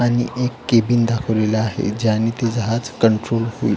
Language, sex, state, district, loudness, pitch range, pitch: Marathi, male, Maharashtra, Pune, -19 LUFS, 110-120 Hz, 115 Hz